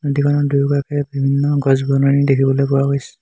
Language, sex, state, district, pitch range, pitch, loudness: Assamese, male, Assam, Hailakandi, 135-145 Hz, 140 Hz, -16 LUFS